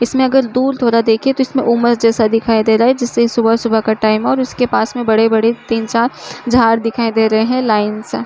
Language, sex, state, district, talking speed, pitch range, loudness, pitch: Hindi, female, Uttar Pradesh, Budaun, 210 wpm, 220-245 Hz, -14 LUFS, 230 Hz